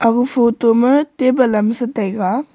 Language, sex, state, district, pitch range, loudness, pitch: Wancho, female, Arunachal Pradesh, Longding, 230-255 Hz, -15 LUFS, 240 Hz